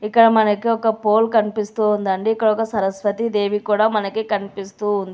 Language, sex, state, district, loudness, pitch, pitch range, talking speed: Telugu, female, Telangana, Hyderabad, -19 LUFS, 210 Hz, 205-220 Hz, 140 wpm